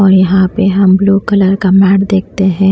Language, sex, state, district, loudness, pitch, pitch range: Hindi, female, Bihar, Patna, -10 LUFS, 195 Hz, 190-195 Hz